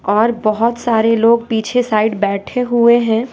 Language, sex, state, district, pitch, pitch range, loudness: Hindi, female, Bihar, West Champaran, 230 Hz, 215-235 Hz, -14 LUFS